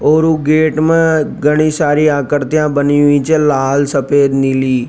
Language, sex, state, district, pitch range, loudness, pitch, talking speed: Rajasthani, male, Rajasthan, Nagaur, 140-155 Hz, -12 LUFS, 145 Hz, 160 wpm